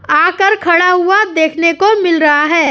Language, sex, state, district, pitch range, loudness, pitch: Hindi, female, Uttar Pradesh, Jyotiba Phule Nagar, 325-390 Hz, -10 LUFS, 345 Hz